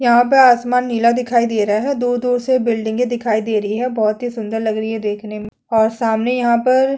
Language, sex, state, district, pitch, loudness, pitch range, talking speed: Hindi, female, Chhattisgarh, Sukma, 235 Hz, -17 LUFS, 220-245 Hz, 240 wpm